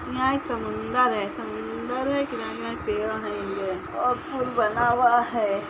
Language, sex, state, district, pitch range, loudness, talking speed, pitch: Hindi, female, Chhattisgarh, Bilaspur, 215-255 Hz, -25 LUFS, 145 wpm, 245 Hz